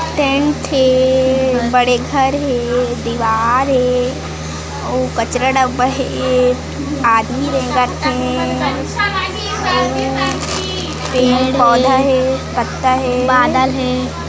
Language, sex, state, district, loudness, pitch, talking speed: Hindi, female, Chhattisgarh, Kabirdham, -15 LUFS, 250 Hz, 95 wpm